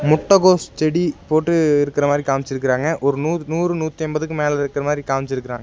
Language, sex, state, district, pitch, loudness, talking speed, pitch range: Tamil, male, Tamil Nadu, Nilgiris, 150 Hz, -19 LUFS, 150 wpm, 140-160 Hz